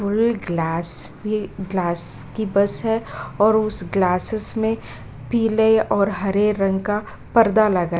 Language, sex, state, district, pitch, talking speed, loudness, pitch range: Hindi, female, Bihar, Kishanganj, 205 Hz, 140 wpm, -20 LUFS, 185-220 Hz